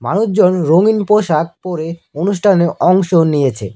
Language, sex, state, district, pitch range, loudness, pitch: Bengali, male, West Bengal, Cooch Behar, 160-200 Hz, -13 LUFS, 175 Hz